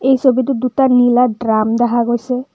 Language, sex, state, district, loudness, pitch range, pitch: Assamese, female, Assam, Kamrup Metropolitan, -14 LUFS, 240-260 Hz, 250 Hz